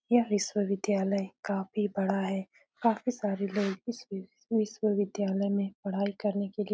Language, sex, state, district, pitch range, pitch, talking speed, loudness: Hindi, female, Bihar, Saran, 195-210 Hz, 205 Hz, 140 wpm, -31 LUFS